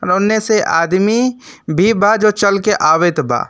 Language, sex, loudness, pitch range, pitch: Bhojpuri, male, -13 LUFS, 175-215 Hz, 205 Hz